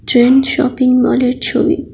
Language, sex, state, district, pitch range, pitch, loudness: Bengali, female, West Bengal, Jalpaiguri, 250-260 Hz, 255 Hz, -12 LUFS